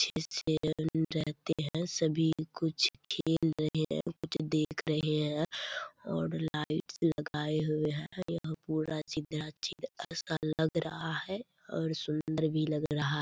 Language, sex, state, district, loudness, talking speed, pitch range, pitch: Hindi, female, Bihar, Purnia, -34 LUFS, 125 wpm, 155-160 Hz, 155 Hz